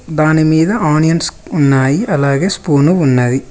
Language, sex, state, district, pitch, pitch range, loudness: Telugu, male, Telangana, Mahabubabad, 155 Hz, 140-160 Hz, -12 LUFS